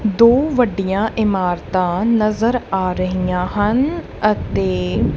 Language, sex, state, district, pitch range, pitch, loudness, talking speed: Punjabi, female, Punjab, Kapurthala, 185-230 Hz, 205 Hz, -17 LUFS, 95 wpm